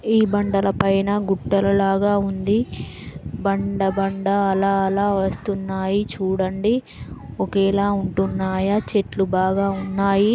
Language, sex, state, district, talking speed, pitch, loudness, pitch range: Telugu, female, Andhra Pradesh, Srikakulam, 85 wpm, 195 Hz, -21 LUFS, 195-200 Hz